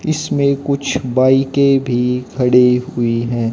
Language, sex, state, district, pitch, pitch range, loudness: Hindi, male, Haryana, Jhajjar, 130 Hz, 125-140 Hz, -15 LUFS